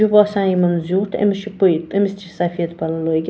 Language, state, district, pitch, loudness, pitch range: Kashmiri, Punjab, Kapurthala, 185 Hz, -18 LUFS, 170-200 Hz